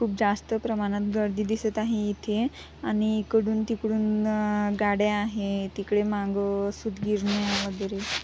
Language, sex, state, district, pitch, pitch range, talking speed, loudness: Marathi, female, Maharashtra, Sindhudurg, 210 Hz, 205-215 Hz, 115 wpm, -27 LUFS